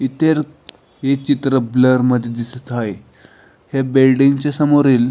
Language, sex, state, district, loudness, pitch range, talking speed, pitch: Marathi, male, Maharashtra, Pune, -16 LUFS, 125-140 Hz, 105 wpm, 135 Hz